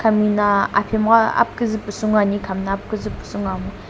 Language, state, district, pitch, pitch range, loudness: Sumi, Nagaland, Dimapur, 205 Hz, 195-215 Hz, -19 LUFS